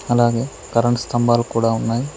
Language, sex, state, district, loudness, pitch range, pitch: Telugu, male, Telangana, Mahabubabad, -19 LUFS, 115-120 Hz, 120 Hz